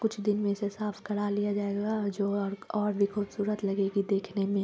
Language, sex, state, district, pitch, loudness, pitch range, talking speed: Hindi, female, Bihar, Lakhisarai, 205 Hz, -30 LUFS, 200-210 Hz, 195 wpm